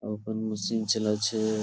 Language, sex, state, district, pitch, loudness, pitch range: Bengali, male, West Bengal, Purulia, 110 Hz, -28 LUFS, 105-110 Hz